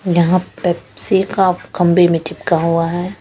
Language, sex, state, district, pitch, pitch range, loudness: Hindi, female, Punjab, Pathankot, 175 Hz, 165-185 Hz, -16 LUFS